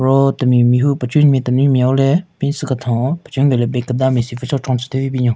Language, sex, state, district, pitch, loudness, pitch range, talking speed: Rengma, male, Nagaland, Kohima, 130 Hz, -15 LUFS, 125-140 Hz, 280 wpm